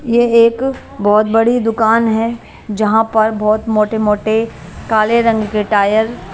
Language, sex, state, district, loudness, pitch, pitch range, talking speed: Hindi, female, Punjab, Kapurthala, -14 LUFS, 220 Hz, 215-230 Hz, 150 wpm